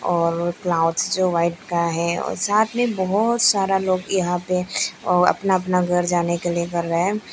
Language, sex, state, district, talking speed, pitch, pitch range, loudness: Hindi, female, Arunachal Pradesh, Lower Dibang Valley, 195 wpm, 180 Hz, 170-195 Hz, -20 LUFS